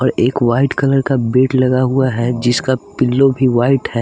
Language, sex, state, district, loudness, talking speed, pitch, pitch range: Hindi, male, Bihar, West Champaran, -14 LUFS, 210 wpm, 130 Hz, 120-135 Hz